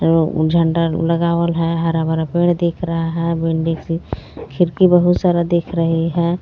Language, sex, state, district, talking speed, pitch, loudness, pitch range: Hindi, female, Jharkhand, Garhwa, 160 wpm, 170 Hz, -17 LUFS, 165-170 Hz